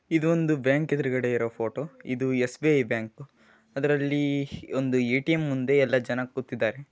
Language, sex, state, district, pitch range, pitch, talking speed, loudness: Kannada, male, Karnataka, Raichur, 125-145 Hz, 130 Hz, 165 wpm, -26 LUFS